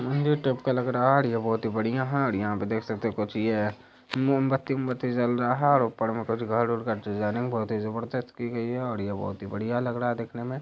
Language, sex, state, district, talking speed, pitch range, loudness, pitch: Hindi, male, Bihar, Saharsa, 270 wpm, 110-130 Hz, -27 LUFS, 120 Hz